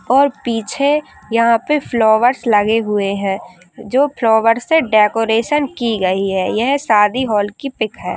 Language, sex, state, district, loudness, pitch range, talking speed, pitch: Hindi, female, Uttar Pradesh, Gorakhpur, -15 LUFS, 210-260 Hz, 155 wpm, 225 Hz